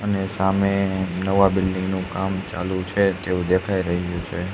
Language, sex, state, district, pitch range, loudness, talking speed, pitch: Gujarati, male, Gujarat, Gandhinagar, 90-95 Hz, -22 LUFS, 160 wpm, 95 Hz